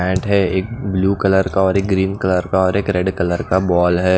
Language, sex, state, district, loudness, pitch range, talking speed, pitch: Hindi, male, Odisha, Nuapada, -17 LUFS, 90-95 Hz, 245 wpm, 95 Hz